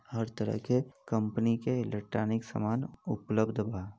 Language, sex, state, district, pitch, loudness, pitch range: Bhojpuri, male, Uttar Pradesh, Deoria, 110 Hz, -33 LUFS, 110-120 Hz